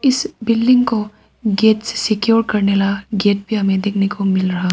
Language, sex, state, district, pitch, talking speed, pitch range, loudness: Hindi, female, Arunachal Pradesh, Papum Pare, 210 Hz, 175 wpm, 200-225 Hz, -16 LUFS